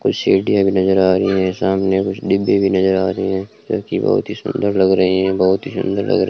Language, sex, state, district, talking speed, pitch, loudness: Hindi, male, Rajasthan, Bikaner, 275 wpm, 95 Hz, -16 LUFS